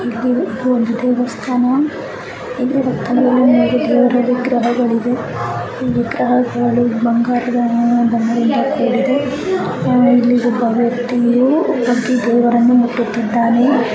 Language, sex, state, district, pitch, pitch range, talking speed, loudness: Kannada, female, Karnataka, Chamarajanagar, 245 Hz, 240-250 Hz, 75 wpm, -15 LUFS